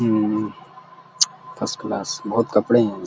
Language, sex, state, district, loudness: Hindi, male, Uttar Pradesh, Deoria, -22 LUFS